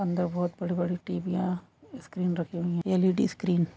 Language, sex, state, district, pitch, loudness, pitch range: Hindi, female, Goa, North and South Goa, 180 Hz, -29 LUFS, 175-185 Hz